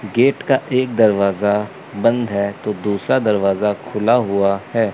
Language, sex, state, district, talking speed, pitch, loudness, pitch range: Hindi, male, Chandigarh, Chandigarh, 145 wpm, 105 Hz, -18 LUFS, 100-120 Hz